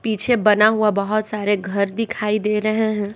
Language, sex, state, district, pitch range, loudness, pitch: Hindi, female, Bihar, West Champaran, 205-215 Hz, -19 LUFS, 210 Hz